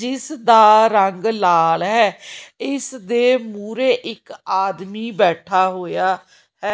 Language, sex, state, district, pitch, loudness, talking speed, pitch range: Punjabi, female, Punjab, Kapurthala, 210 Hz, -17 LUFS, 115 wpm, 190-240 Hz